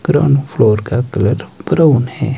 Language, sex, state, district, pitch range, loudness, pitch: Hindi, male, Himachal Pradesh, Shimla, 120-150 Hz, -14 LUFS, 135 Hz